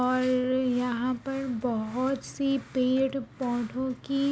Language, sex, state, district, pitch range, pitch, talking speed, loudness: Hindi, female, Uttar Pradesh, Jalaun, 250-270 Hz, 255 Hz, 95 wpm, -28 LUFS